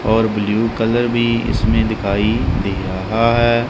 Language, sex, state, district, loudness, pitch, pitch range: Hindi, male, Punjab, Kapurthala, -17 LUFS, 110 Hz, 105-115 Hz